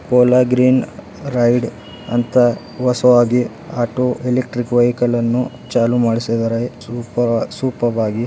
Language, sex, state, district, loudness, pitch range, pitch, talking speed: Kannada, male, Karnataka, Belgaum, -16 LUFS, 120-125 Hz, 120 Hz, 110 wpm